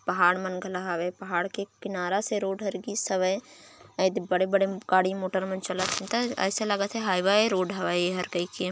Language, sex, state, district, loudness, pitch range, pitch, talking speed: Chhattisgarhi, female, Chhattisgarh, Raigarh, -27 LUFS, 185-205 Hz, 190 Hz, 180 wpm